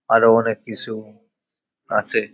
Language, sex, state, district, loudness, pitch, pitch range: Bengali, male, West Bengal, Paschim Medinipur, -19 LUFS, 115 Hz, 110-115 Hz